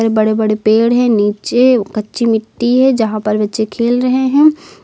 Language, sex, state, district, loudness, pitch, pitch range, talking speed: Hindi, female, Uttar Pradesh, Lucknow, -13 LUFS, 225 Hz, 215-250 Hz, 175 wpm